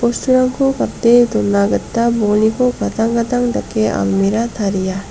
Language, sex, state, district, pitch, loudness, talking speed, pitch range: Garo, female, Meghalaya, South Garo Hills, 230 Hz, -15 LUFS, 105 wpm, 190-245 Hz